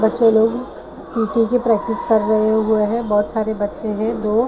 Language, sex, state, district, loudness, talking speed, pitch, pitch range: Hindi, female, Maharashtra, Mumbai Suburban, -17 LUFS, 215 wpm, 220 Hz, 215-230 Hz